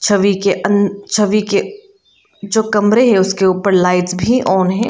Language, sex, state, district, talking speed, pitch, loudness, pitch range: Hindi, female, Arunachal Pradesh, Lower Dibang Valley, 170 wpm, 200 Hz, -14 LUFS, 190-215 Hz